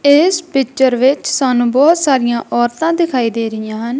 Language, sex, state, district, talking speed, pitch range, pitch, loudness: Punjabi, female, Punjab, Kapurthala, 165 wpm, 240-290 Hz, 260 Hz, -14 LUFS